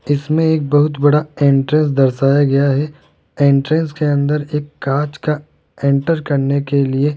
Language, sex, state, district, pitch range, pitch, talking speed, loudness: Hindi, male, Rajasthan, Jaipur, 140-150 Hz, 145 Hz, 160 wpm, -16 LUFS